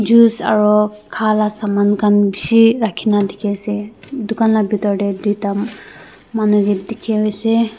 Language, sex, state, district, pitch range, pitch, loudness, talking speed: Nagamese, female, Nagaland, Dimapur, 205-225 Hz, 210 Hz, -16 LUFS, 140 wpm